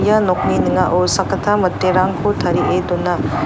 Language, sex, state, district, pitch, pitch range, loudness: Garo, female, Meghalaya, North Garo Hills, 190 Hz, 185-205 Hz, -16 LUFS